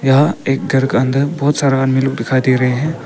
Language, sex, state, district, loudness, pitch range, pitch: Hindi, male, Arunachal Pradesh, Papum Pare, -15 LUFS, 130-140 Hz, 135 Hz